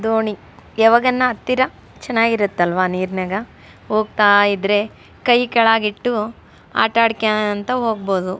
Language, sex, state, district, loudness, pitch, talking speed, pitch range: Kannada, female, Karnataka, Raichur, -17 LUFS, 215 Hz, 80 wpm, 205-230 Hz